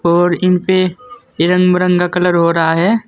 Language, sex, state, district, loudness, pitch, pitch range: Hindi, male, Uttar Pradesh, Saharanpur, -13 LUFS, 180 Hz, 170-185 Hz